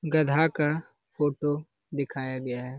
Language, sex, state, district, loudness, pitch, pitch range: Hindi, male, Bihar, Lakhisarai, -28 LUFS, 145 Hz, 135-155 Hz